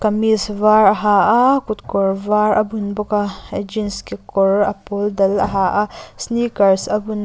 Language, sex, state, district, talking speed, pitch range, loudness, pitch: Mizo, female, Mizoram, Aizawl, 200 wpm, 200-215 Hz, -17 LUFS, 210 Hz